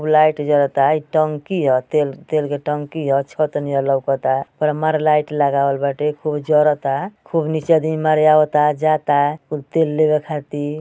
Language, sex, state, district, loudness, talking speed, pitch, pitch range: Bhojpuri, male, Uttar Pradesh, Ghazipur, -18 LUFS, 170 wpm, 150 Hz, 145-155 Hz